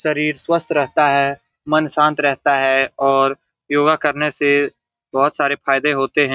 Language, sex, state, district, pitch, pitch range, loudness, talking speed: Hindi, male, Bihar, Saran, 145 Hz, 135-150 Hz, -17 LUFS, 150 wpm